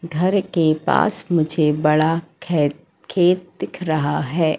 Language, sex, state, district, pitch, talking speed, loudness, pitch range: Hindi, female, Madhya Pradesh, Katni, 165 Hz, 130 wpm, -19 LUFS, 155-180 Hz